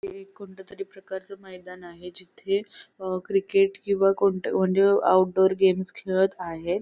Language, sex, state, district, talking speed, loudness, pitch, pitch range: Marathi, female, Maharashtra, Sindhudurg, 150 wpm, -23 LUFS, 190 Hz, 185-195 Hz